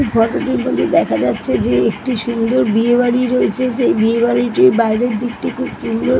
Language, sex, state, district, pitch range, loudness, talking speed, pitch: Bengali, female, West Bengal, Paschim Medinipur, 225-245 Hz, -15 LUFS, 175 wpm, 235 Hz